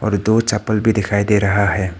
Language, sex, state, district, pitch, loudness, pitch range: Hindi, male, Arunachal Pradesh, Papum Pare, 105 Hz, -16 LUFS, 100-110 Hz